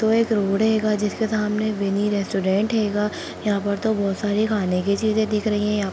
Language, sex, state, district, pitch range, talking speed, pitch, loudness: Hindi, female, Bihar, Jahanabad, 200-215 Hz, 200 wpm, 210 Hz, -22 LUFS